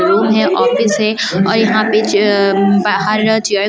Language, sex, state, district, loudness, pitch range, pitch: Hindi, female, Delhi, New Delhi, -13 LUFS, 200-220 Hz, 210 Hz